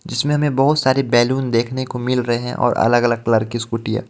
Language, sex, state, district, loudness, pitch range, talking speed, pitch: Hindi, male, Jharkhand, Ranchi, -18 LUFS, 115-130 Hz, 250 wpm, 120 Hz